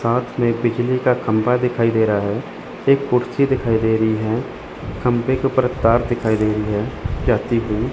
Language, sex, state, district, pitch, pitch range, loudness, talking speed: Hindi, male, Chandigarh, Chandigarh, 120 Hz, 110-125 Hz, -19 LUFS, 195 wpm